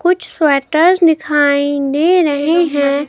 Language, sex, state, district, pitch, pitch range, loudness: Hindi, female, Himachal Pradesh, Shimla, 300 Hz, 285-340 Hz, -13 LUFS